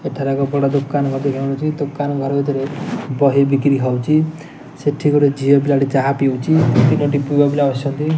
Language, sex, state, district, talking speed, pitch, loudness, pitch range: Odia, male, Odisha, Nuapada, 155 wpm, 140 Hz, -17 LUFS, 135-145 Hz